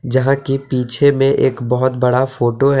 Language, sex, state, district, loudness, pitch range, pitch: Hindi, male, Jharkhand, Deoghar, -15 LUFS, 125-135 Hz, 130 Hz